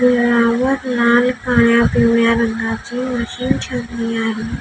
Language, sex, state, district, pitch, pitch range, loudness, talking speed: Marathi, female, Maharashtra, Gondia, 235 Hz, 230-250 Hz, -16 LUFS, 105 wpm